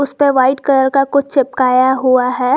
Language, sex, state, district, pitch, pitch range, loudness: Hindi, female, Jharkhand, Garhwa, 265 Hz, 255-275 Hz, -13 LUFS